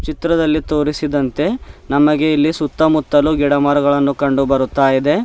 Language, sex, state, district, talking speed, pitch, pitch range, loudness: Kannada, male, Karnataka, Bidar, 105 wpm, 150 Hz, 140-155 Hz, -15 LUFS